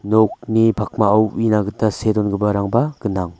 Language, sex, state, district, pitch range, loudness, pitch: Garo, male, Meghalaya, West Garo Hills, 105-110 Hz, -18 LUFS, 110 Hz